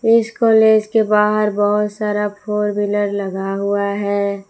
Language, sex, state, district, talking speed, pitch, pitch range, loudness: Hindi, female, Jharkhand, Palamu, 145 wpm, 210 Hz, 200-215 Hz, -17 LUFS